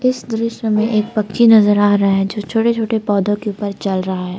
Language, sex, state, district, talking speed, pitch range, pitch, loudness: Hindi, female, Jharkhand, Palamu, 245 wpm, 200-225 Hz, 210 Hz, -16 LUFS